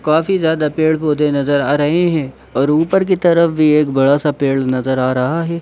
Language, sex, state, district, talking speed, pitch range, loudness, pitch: Hindi, male, Jharkhand, Sahebganj, 225 wpm, 140-165 Hz, -15 LUFS, 150 Hz